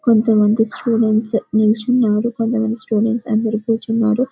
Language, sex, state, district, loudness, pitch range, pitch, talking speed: Telugu, female, Telangana, Karimnagar, -17 LUFS, 220-230 Hz, 225 Hz, 140 wpm